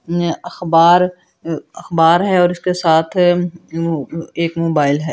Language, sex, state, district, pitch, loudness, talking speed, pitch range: Hindi, female, Delhi, New Delhi, 170 Hz, -16 LUFS, 105 wpm, 165-175 Hz